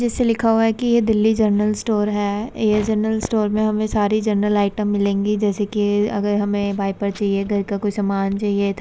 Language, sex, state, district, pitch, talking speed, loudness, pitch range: Hindi, female, Uttar Pradesh, Budaun, 210 Hz, 205 wpm, -19 LUFS, 205-215 Hz